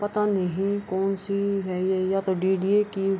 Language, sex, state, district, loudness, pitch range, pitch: Hindi, female, Bihar, Kishanganj, -25 LUFS, 190-200 Hz, 195 Hz